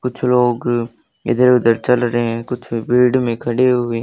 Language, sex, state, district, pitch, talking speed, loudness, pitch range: Hindi, male, Haryana, Charkhi Dadri, 120 Hz, 180 wpm, -16 LUFS, 115-125 Hz